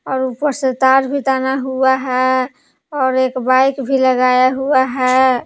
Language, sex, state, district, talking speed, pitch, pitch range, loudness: Hindi, female, Jharkhand, Palamu, 165 wpm, 260 Hz, 255-270 Hz, -15 LUFS